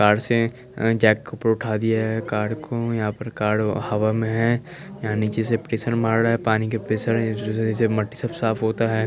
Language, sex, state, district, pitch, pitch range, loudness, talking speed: Hindi, male, Chandigarh, Chandigarh, 110 Hz, 110-115 Hz, -22 LUFS, 220 wpm